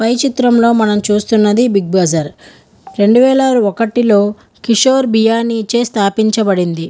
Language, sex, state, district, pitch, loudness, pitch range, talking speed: Telugu, female, Andhra Pradesh, Guntur, 225 Hz, -12 LUFS, 205-240 Hz, 120 wpm